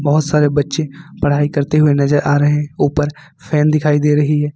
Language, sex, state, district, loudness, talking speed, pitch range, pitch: Hindi, male, Jharkhand, Ranchi, -15 LUFS, 225 wpm, 145-150 Hz, 150 Hz